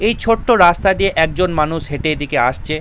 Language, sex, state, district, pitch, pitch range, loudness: Bengali, male, West Bengal, Jalpaiguri, 165 Hz, 150-195 Hz, -15 LUFS